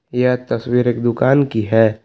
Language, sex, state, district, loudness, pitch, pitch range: Hindi, male, Jharkhand, Palamu, -16 LUFS, 120 Hz, 115-125 Hz